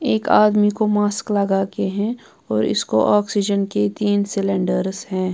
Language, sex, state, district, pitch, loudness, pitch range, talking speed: Hindi, female, Bihar, Patna, 200 Hz, -19 LUFS, 185-210 Hz, 155 wpm